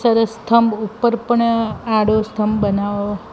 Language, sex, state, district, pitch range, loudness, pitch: Gujarati, female, Gujarat, Gandhinagar, 215-230 Hz, -17 LUFS, 220 Hz